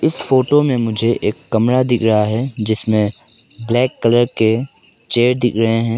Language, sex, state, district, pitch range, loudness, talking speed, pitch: Hindi, male, Arunachal Pradesh, Papum Pare, 110-125 Hz, -16 LUFS, 170 wpm, 115 Hz